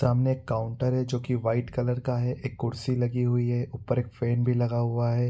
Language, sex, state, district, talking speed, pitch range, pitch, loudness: Hindi, male, Bihar, Araria, 250 wpm, 120-125 Hz, 125 Hz, -27 LUFS